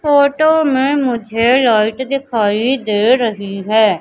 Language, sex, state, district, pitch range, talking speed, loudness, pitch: Hindi, female, Madhya Pradesh, Katni, 215-275 Hz, 120 wpm, -14 LUFS, 240 Hz